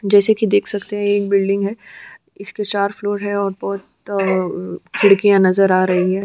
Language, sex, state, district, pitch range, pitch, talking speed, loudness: Hindi, female, Chhattisgarh, Sukma, 195-205 Hz, 200 Hz, 190 wpm, -17 LUFS